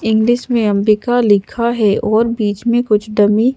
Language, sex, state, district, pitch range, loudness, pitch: Hindi, female, Madhya Pradesh, Bhopal, 210-235 Hz, -14 LUFS, 220 Hz